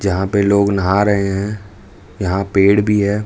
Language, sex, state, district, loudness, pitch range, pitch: Hindi, male, Chhattisgarh, Raipur, -15 LUFS, 95-105 Hz, 100 Hz